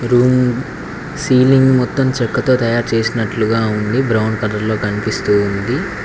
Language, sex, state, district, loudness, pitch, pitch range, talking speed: Telugu, male, Telangana, Mahabubabad, -15 LUFS, 115 Hz, 110-125 Hz, 120 wpm